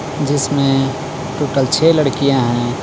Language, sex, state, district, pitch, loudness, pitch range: Hindi, male, Jharkhand, Garhwa, 135 Hz, -16 LUFS, 135-145 Hz